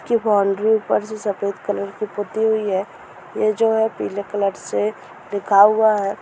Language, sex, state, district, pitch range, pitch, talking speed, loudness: Hindi, female, Chhattisgarh, Rajnandgaon, 200-215 Hz, 205 Hz, 185 wpm, -20 LUFS